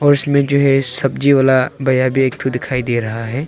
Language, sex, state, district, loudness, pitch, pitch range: Hindi, male, Arunachal Pradesh, Longding, -14 LUFS, 130 Hz, 130-140 Hz